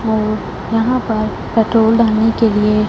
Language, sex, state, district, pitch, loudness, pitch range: Hindi, female, Punjab, Fazilka, 220 Hz, -15 LUFS, 215-225 Hz